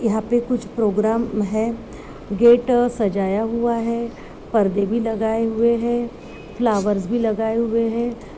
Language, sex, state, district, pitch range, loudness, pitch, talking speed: Hindi, female, Uttar Pradesh, Muzaffarnagar, 215-235 Hz, -20 LUFS, 225 Hz, 135 wpm